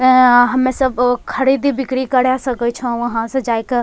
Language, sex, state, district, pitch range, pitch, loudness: Angika, female, Bihar, Bhagalpur, 245-260 Hz, 255 Hz, -15 LUFS